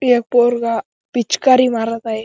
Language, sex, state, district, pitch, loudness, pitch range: Marathi, male, Maharashtra, Chandrapur, 240 Hz, -16 LUFS, 230-250 Hz